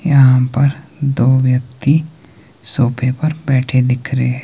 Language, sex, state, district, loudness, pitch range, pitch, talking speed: Hindi, male, Himachal Pradesh, Shimla, -15 LUFS, 125-145 Hz, 130 Hz, 135 wpm